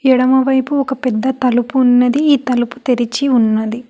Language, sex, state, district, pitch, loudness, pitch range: Telugu, female, Telangana, Hyderabad, 255 Hz, -14 LUFS, 245-265 Hz